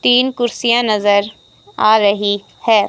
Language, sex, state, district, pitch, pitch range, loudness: Hindi, female, Himachal Pradesh, Shimla, 215 Hz, 205-240 Hz, -14 LUFS